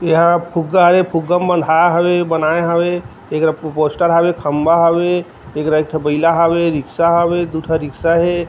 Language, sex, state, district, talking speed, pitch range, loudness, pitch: Chhattisgarhi, male, Chhattisgarh, Rajnandgaon, 175 wpm, 155-175 Hz, -15 LUFS, 170 Hz